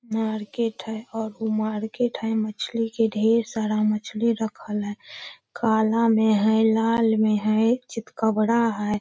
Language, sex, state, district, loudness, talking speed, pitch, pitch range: Magahi, female, Bihar, Lakhisarai, -23 LUFS, 140 wpm, 220 Hz, 215-225 Hz